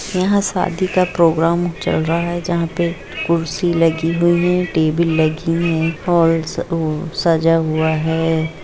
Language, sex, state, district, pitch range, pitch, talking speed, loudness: Hindi, female, Jharkhand, Jamtara, 160-175 Hz, 170 Hz, 140 wpm, -17 LUFS